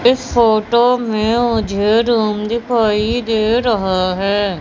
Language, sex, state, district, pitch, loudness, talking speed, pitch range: Hindi, female, Madhya Pradesh, Katni, 225 Hz, -15 LUFS, 115 wpm, 210-235 Hz